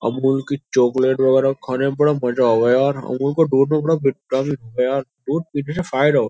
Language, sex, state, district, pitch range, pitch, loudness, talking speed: Hindi, male, Uttar Pradesh, Jyotiba Phule Nagar, 130-145 Hz, 135 Hz, -18 LUFS, 220 wpm